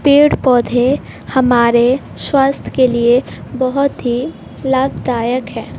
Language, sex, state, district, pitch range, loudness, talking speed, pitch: Hindi, female, Bihar, West Champaran, 240-270 Hz, -14 LUFS, 105 wpm, 255 Hz